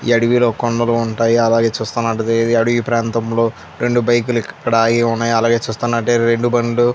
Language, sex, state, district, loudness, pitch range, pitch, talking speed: Telugu, male, Andhra Pradesh, Anantapur, -16 LUFS, 115-120 Hz, 115 Hz, 155 wpm